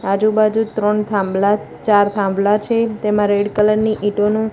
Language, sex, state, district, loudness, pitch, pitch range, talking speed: Gujarati, female, Gujarat, Gandhinagar, -16 LUFS, 210 Hz, 205-215 Hz, 160 wpm